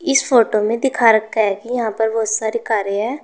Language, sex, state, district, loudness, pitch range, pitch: Hindi, female, Uttar Pradesh, Saharanpur, -17 LUFS, 215-240 Hz, 225 Hz